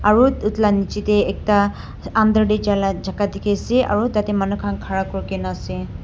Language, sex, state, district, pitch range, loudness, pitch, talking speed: Nagamese, female, Nagaland, Dimapur, 195-210 Hz, -19 LUFS, 205 Hz, 200 wpm